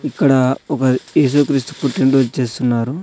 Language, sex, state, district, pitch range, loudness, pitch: Telugu, male, Andhra Pradesh, Sri Satya Sai, 130-145 Hz, -16 LUFS, 135 Hz